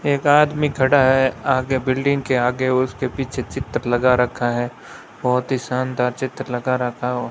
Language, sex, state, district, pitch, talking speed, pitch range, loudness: Hindi, male, Rajasthan, Bikaner, 130 Hz, 180 wpm, 125-135 Hz, -20 LUFS